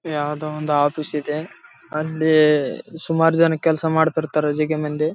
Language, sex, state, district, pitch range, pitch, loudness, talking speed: Kannada, male, Karnataka, Raichur, 150-160 Hz, 155 Hz, -20 LUFS, 105 wpm